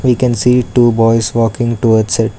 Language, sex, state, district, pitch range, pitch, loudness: English, male, Karnataka, Bangalore, 115-125 Hz, 115 Hz, -12 LUFS